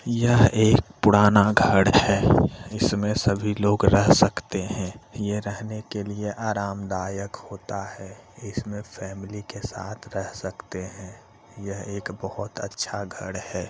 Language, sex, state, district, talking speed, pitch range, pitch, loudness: Hindi, male, Bihar, Jamui, 135 wpm, 95-105 Hz, 100 Hz, -23 LUFS